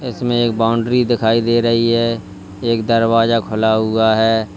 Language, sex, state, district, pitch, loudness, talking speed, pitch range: Hindi, male, Uttar Pradesh, Lalitpur, 115 Hz, -15 LUFS, 155 wpm, 110-115 Hz